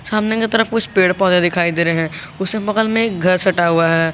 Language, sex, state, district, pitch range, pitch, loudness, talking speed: Hindi, male, Jharkhand, Garhwa, 170-215 Hz, 185 Hz, -16 LUFS, 260 wpm